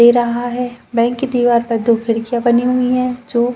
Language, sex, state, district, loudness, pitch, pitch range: Hindi, female, Uttar Pradesh, Jalaun, -16 LUFS, 240 Hz, 235-250 Hz